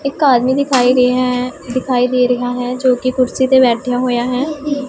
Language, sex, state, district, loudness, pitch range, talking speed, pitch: Punjabi, female, Punjab, Pathankot, -14 LUFS, 250-260 Hz, 210 wpm, 255 Hz